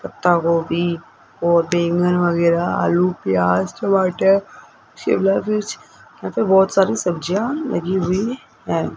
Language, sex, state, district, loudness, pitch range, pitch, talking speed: Hindi, female, Rajasthan, Jaipur, -18 LUFS, 170-195 Hz, 180 Hz, 120 wpm